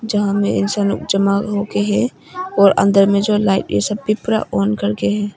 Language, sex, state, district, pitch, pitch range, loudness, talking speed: Hindi, female, Arunachal Pradesh, Papum Pare, 200 Hz, 195-210 Hz, -16 LUFS, 200 wpm